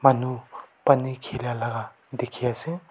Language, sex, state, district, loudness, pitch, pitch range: Nagamese, male, Nagaland, Kohima, -27 LUFS, 125 Hz, 120-135 Hz